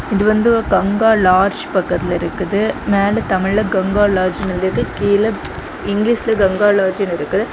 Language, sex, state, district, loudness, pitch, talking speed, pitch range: Tamil, female, Tamil Nadu, Kanyakumari, -16 LUFS, 200 Hz, 145 wpm, 190-210 Hz